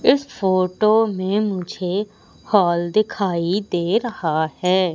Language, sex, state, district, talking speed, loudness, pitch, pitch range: Hindi, female, Madhya Pradesh, Umaria, 110 wpm, -20 LUFS, 190 Hz, 180-215 Hz